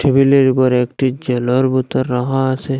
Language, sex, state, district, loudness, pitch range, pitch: Bengali, male, Assam, Hailakandi, -15 LUFS, 125-135 Hz, 130 Hz